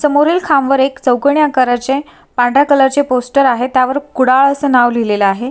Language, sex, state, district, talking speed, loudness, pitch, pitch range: Marathi, female, Maharashtra, Sindhudurg, 185 wpm, -12 LUFS, 270 Hz, 250-285 Hz